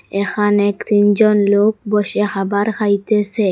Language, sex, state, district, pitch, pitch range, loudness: Bengali, female, Assam, Hailakandi, 205 Hz, 200-210 Hz, -16 LUFS